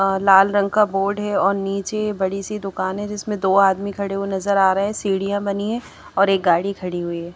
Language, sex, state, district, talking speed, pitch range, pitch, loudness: Hindi, female, Haryana, Charkhi Dadri, 245 wpm, 190-205 Hz, 195 Hz, -20 LUFS